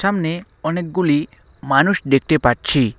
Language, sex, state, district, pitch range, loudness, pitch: Bengali, male, West Bengal, Alipurduar, 135-175 Hz, -18 LUFS, 150 Hz